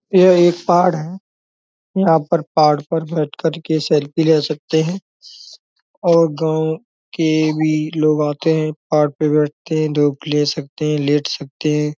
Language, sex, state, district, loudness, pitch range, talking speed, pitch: Hindi, male, Uttar Pradesh, Etah, -17 LUFS, 150-165 Hz, 165 wpm, 155 Hz